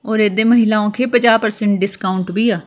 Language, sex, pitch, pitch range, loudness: Punjabi, female, 215 Hz, 205-225 Hz, -15 LUFS